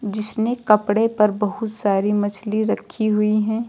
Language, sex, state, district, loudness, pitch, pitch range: Hindi, female, Uttar Pradesh, Lucknow, -19 LUFS, 215 Hz, 210-220 Hz